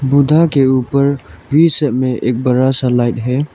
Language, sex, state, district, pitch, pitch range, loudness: Hindi, male, Arunachal Pradesh, Lower Dibang Valley, 130 Hz, 125-140 Hz, -13 LUFS